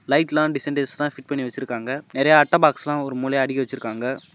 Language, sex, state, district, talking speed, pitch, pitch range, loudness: Tamil, male, Tamil Nadu, Namakkal, 180 wpm, 140 Hz, 130-150 Hz, -21 LUFS